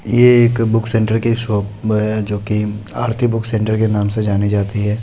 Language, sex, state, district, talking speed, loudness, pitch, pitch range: Hindi, male, Bihar, Muzaffarpur, 240 wpm, -16 LUFS, 110 Hz, 105-115 Hz